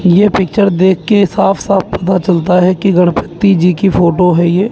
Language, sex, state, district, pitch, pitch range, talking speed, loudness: Hindi, male, Chandigarh, Chandigarh, 185 Hz, 180-195 Hz, 205 wpm, -11 LUFS